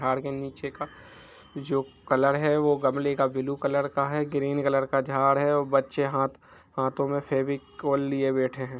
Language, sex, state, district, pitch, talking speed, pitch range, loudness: Hindi, male, Jharkhand, Jamtara, 140 Hz, 190 wpm, 135-140 Hz, -26 LUFS